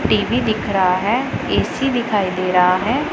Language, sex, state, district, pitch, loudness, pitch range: Hindi, female, Punjab, Pathankot, 195 Hz, -18 LUFS, 185-245 Hz